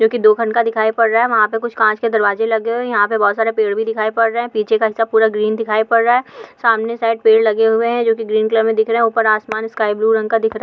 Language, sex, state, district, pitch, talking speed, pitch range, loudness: Hindi, female, Goa, North and South Goa, 225 Hz, 325 wpm, 220-230 Hz, -15 LUFS